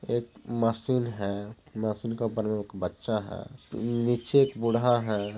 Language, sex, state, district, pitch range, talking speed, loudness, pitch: Hindi, male, Bihar, Jahanabad, 105-120 Hz, 135 wpm, -29 LUFS, 115 Hz